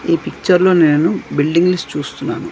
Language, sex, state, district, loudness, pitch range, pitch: Telugu, male, Andhra Pradesh, Manyam, -15 LUFS, 150-185 Hz, 170 Hz